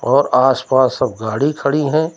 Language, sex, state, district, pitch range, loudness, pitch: Hindi, male, Uttar Pradesh, Lucknow, 130-150 Hz, -16 LUFS, 135 Hz